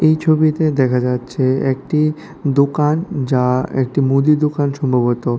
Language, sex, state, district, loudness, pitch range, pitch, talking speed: Bengali, male, Tripura, West Tripura, -16 LUFS, 130-155 Hz, 140 Hz, 120 wpm